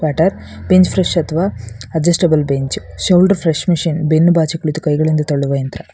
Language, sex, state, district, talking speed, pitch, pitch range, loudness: Kannada, female, Karnataka, Bangalore, 160 wpm, 160 Hz, 150-175 Hz, -15 LUFS